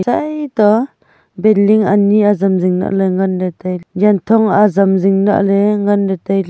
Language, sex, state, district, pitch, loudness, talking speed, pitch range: Wancho, female, Arunachal Pradesh, Longding, 200 Hz, -13 LUFS, 155 wpm, 190-210 Hz